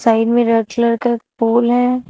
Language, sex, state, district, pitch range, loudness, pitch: Hindi, female, Uttar Pradesh, Shamli, 230-240 Hz, -15 LUFS, 235 Hz